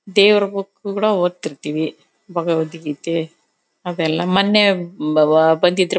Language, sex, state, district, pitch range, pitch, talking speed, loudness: Kannada, female, Karnataka, Bellary, 160-195 Hz, 175 Hz, 90 wpm, -18 LUFS